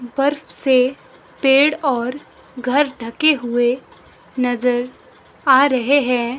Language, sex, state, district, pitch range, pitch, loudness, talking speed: Hindi, male, Himachal Pradesh, Shimla, 245-280 Hz, 260 Hz, -17 LUFS, 105 wpm